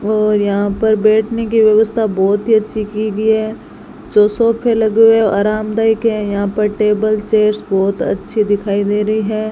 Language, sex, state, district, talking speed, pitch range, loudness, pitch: Hindi, female, Rajasthan, Bikaner, 175 wpm, 210-220 Hz, -14 LUFS, 215 Hz